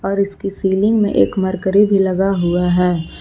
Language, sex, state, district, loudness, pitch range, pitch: Hindi, female, Jharkhand, Palamu, -16 LUFS, 185-200 Hz, 195 Hz